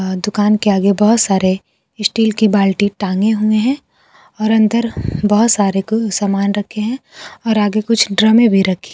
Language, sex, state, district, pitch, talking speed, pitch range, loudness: Hindi, female, Bihar, Kaimur, 210 Hz, 170 wpm, 200-220 Hz, -14 LUFS